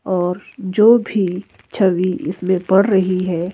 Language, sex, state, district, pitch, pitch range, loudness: Hindi, female, Himachal Pradesh, Shimla, 185 Hz, 180-195 Hz, -17 LUFS